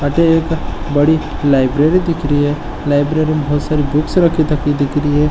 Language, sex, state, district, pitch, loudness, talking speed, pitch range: Marwari, male, Rajasthan, Nagaur, 150 Hz, -15 LUFS, 190 wpm, 145-155 Hz